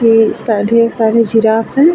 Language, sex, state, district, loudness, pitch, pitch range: Hindi, female, Bihar, Vaishali, -12 LUFS, 225 Hz, 220-230 Hz